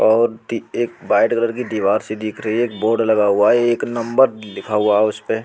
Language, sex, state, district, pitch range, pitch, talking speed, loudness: Hindi, male, Delhi, New Delhi, 105-115 Hz, 110 Hz, 265 wpm, -18 LUFS